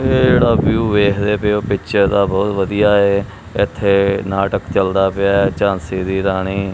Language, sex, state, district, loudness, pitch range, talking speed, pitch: Punjabi, male, Punjab, Kapurthala, -15 LUFS, 95-100 Hz, 170 wpm, 100 Hz